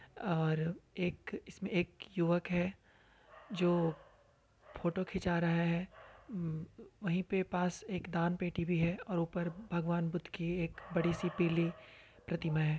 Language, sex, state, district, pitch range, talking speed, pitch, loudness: Hindi, female, Uttar Pradesh, Varanasi, 170-180 Hz, 140 wpm, 175 Hz, -36 LUFS